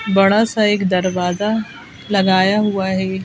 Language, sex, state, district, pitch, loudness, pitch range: Hindi, female, Madhya Pradesh, Bhopal, 195 Hz, -16 LUFS, 190-210 Hz